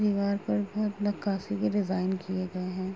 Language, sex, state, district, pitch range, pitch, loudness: Hindi, female, Uttar Pradesh, Gorakhpur, 185-205 Hz, 195 Hz, -30 LUFS